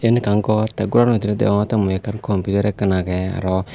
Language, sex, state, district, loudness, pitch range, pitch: Chakma, male, Tripura, Unakoti, -19 LUFS, 95-110 Hz, 105 Hz